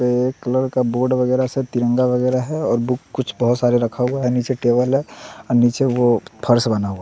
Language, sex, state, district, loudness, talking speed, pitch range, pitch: Hindi, male, Bihar, West Champaran, -19 LUFS, 155 wpm, 120-130 Hz, 125 Hz